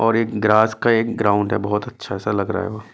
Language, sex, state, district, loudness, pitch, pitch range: Hindi, male, Delhi, New Delhi, -19 LUFS, 110 Hz, 105-115 Hz